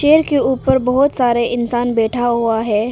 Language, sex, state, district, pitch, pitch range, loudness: Hindi, female, Arunachal Pradesh, Papum Pare, 245 Hz, 235-265 Hz, -15 LUFS